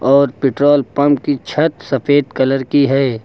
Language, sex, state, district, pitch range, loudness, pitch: Hindi, male, Uttar Pradesh, Lucknow, 130-145 Hz, -15 LUFS, 140 Hz